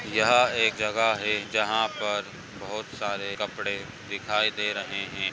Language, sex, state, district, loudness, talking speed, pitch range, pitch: Hindi, male, Maharashtra, Pune, -26 LUFS, 145 wpm, 105-110 Hz, 105 Hz